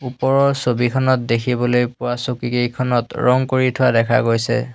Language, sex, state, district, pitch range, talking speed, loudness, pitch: Assamese, male, Assam, Hailakandi, 120-130 Hz, 125 wpm, -18 LUFS, 125 Hz